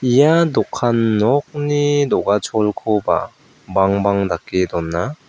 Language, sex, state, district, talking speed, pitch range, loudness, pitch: Garo, male, Meghalaya, West Garo Hills, 80 wpm, 95-145 Hz, -17 LUFS, 110 Hz